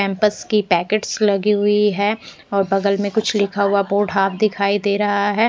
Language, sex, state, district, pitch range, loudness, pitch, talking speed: Hindi, female, Bihar, West Champaran, 200-210 Hz, -18 LUFS, 205 Hz, 195 wpm